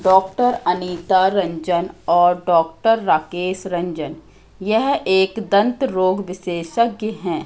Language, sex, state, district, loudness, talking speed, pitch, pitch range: Hindi, female, Madhya Pradesh, Katni, -19 LUFS, 105 wpm, 185 Hz, 175-210 Hz